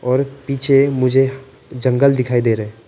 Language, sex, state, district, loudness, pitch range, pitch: Hindi, male, Arunachal Pradesh, Papum Pare, -16 LUFS, 125-135 Hz, 130 Hz